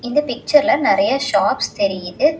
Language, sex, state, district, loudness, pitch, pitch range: Tamil, female, Tamil Nadu, Chennai, -17 LUFS, 275 Hz, 200-295 Hz